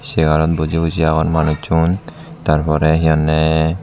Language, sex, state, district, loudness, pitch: Chakma, male, Tripura, Dhalai, -16 LUFS, 80 Hz